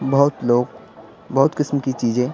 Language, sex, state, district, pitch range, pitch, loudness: Hindi, male, Bihar, Patna, 125-140 Hz, 135 Hz, -20 LUFS